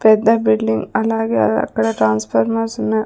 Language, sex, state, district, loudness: Telugu, female, Andhra Pradesh, Sri Satya Sai, -17 LUFS